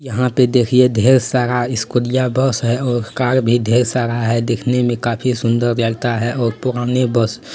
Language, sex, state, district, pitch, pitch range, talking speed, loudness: Hindi, male, Bihar, Gopalganj, 120 Hz, 115-125 Hz, 190 wpm, -16 LUFS